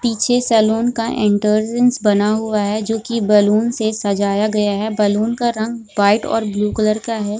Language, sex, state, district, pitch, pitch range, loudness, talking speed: Hindi, female, Bihar, Supaul, 215 Hz, 210-230 Hz, -17 LUFS, 195 wpm